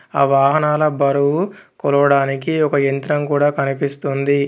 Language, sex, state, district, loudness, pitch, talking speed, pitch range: Telugu, male, Telangana, Komaram Bheem, -17 LUFS, 140 Hz, 105 wpm, 140-150 Hz